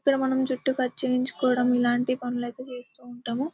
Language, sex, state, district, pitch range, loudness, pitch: Telugu, male, Telangana, Nalgonda, 245-260 Hz, -26 LUFS, 250 Hz